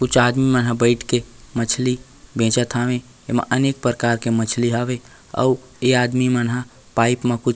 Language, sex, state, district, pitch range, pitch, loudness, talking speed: Chhattisgarhi, male, Chhattisgarh, Raigarh, 120-125 Hz, 120 Hz, -20 LUFS, 175 wpm